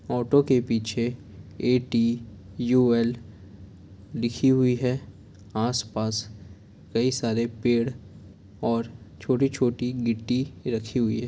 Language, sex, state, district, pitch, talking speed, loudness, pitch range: Hindi, male, Chhattisgarh, Korba, 115 Hz, 105 wpm, -25 LUFS, 105-125 Hz